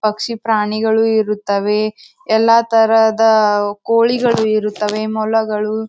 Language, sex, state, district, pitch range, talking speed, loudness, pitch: Kannada, female, Karnataka, Bijapur, 210-225 Hz, 80 wpm, -15 LUFS, 220 Hz